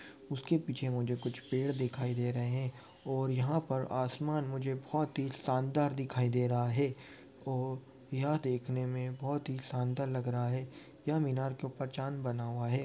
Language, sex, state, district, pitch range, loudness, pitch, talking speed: Hindi, male, Bihar, Kishanganj, 125-140 Hz, -35 LUFS, 130 Hz, 180 wpm